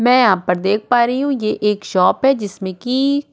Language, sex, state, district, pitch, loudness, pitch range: Hindi, female, Goa, North and South Goa, 235 Hz, -16 LUFS, 195-260 Hz